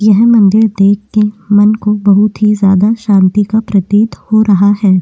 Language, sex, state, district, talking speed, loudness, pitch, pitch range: Hindi, female, Uttarakhand, Tehri Garhwal, 180 wpm, -10 LUFS, 210 Hz, 200-215 Hz